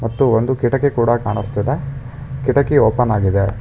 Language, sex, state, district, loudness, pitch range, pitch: Kannada, male, Karnataka, Bangalore, -17 LUFS, 110-135 Hz, 120 Hz